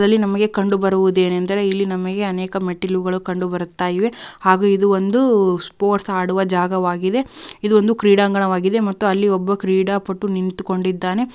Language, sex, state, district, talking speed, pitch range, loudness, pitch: Kannada, female, Karnataka, Raichur, 120 wpm, 185-200 Hz, -18 LUFS, 195 Hz